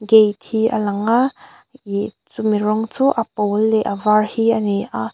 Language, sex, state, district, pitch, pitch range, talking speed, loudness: Mizo, female, Mizoram, Aizawl, 215 Hz, 205-225 Hz, 210 wpm, -18 LUFS